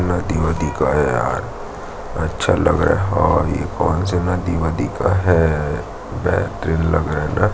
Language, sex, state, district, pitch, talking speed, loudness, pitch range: Hindi, male, Chhattisgarh, Jashpur, 85 Hz, 160 wpm, -19 LUFS, 80-90 Hz